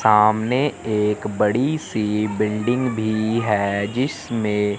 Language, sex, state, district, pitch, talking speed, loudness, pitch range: Hindi, male, Chandigarh, Chandigarh, 110 Hz, 100 wpm, -21 LUFS, 105-120 Hz